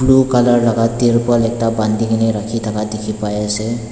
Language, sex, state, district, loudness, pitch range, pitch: Nagamese, male, Nagaland, Dimapur, -16 LUFS, 110-120 Hz, 115 Hz